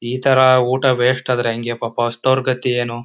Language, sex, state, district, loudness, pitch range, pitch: Kannada, male, Karnataka, Chamarajanagar, -16 LUFS, 120-130 Hz, 125 Hz